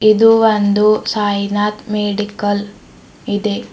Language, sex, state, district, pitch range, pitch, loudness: Kannada, female, Karnataka, Bidar, 205-215 Hz, 210 Hz, -15 LUFS